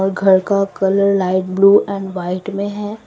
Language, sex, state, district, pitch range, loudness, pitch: Hindi, female, Assam, Sonitpur, 190-200 Hz, -16 LUFS, 195 Hz